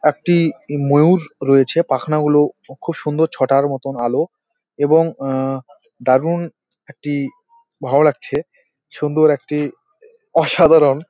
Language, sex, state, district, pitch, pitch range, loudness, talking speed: Bengali, male, West Bengal, Dakshin Dinajpur, 150 Hz, 140-175 Hz, -17 LUFS, 95 wpm